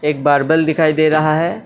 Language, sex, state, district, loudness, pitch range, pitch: Hindi, male, Assam, Kamrup Metropolitan, -14 LUFS, 150-160 Hz, 155 Hz